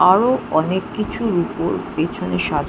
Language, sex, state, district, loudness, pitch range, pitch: Bengali, female, West Bengal, Jhargram, -20 LUFS, 170-220 Hz, 185 Hz